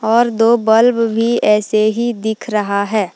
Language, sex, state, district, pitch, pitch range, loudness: Hindi, female, Jharkhand, Palamu, 220 Hz, 215-235 Hz, -14 LUFS